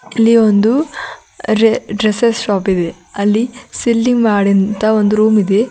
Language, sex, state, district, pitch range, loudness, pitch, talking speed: Kannada, female, Karnataka, Bidar, 205-230 Hz, -13 LUFS, 220 Hz, 125 wpm